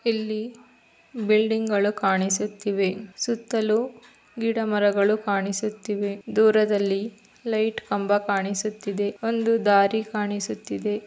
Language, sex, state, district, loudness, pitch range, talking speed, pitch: Kannada, female, Karnataka, Belgaum, -24 LUFS, 205-220 Hz, 85 wpm, 210 Hz